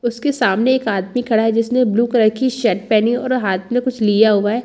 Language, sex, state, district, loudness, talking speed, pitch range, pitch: Hindi, female, Chhattisgarh, Balrampur, -16 LUFS, 245 wpm, 215-250 Hz, 230 Hz